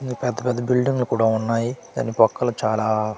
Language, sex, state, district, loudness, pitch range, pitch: Telugu, male, Andhra Pradesh, Manyam, -21 LUFS, 110-125 Hz, 120 Hz